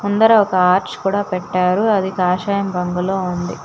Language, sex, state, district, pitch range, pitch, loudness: Telugu, female, Telangana, Hyderabad, 180-205 Hz, 190 Hz, -17 LUFS